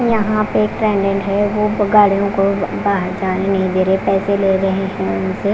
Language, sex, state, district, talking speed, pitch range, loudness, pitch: Hindi, female, Punjab, Fazilka, 185 wpm, 190-205 Hz, -16 LUFS, 195 Hz